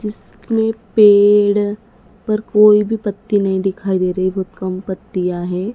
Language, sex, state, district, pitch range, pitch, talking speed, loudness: Hindi, female, Madhya Pradesh, Dhar, 190-210 Hz, 205 Hz, 155 wpm, -16 LUFS